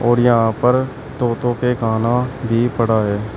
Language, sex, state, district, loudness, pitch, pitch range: Hindi, male, Uttar Pradesh, Shamli, -17 LUFS, 120 Hz, 115-125 Hz